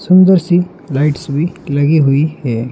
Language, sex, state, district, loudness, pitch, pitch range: Hindi, male, Madhya Pradesh, Dhar, -13 LUFS, 150 Hz, 140-175 Hz